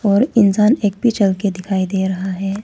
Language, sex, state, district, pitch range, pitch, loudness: Hindi, female, Arunachal Pradesh, Papum Pare, 190-210 Hz, 200 Hz, -16 LUFS